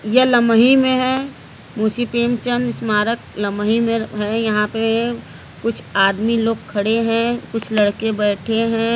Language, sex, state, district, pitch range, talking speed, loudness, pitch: Hindi, female, Uttar Pradesh, Varanasi, 215-235 Hz, 155 wpm, -18 LUFS, 225 Hz